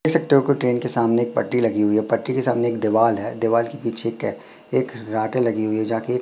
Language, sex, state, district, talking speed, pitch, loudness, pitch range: Hindi, female, Madhya Pradesh, Katni, 270 wpm, 115 Hz, -20 LUFS, 115-125 Hz